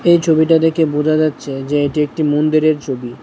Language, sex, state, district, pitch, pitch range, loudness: Bengali, male, Tripura, West Tripura, 155 Hz, 145-160 Hz, -15 LUFS